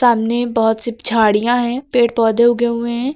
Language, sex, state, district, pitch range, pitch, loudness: Hindi, female, Uttar Pradesh, Lucknow, 225-240 Hz, 235 Hz, -16 LUFS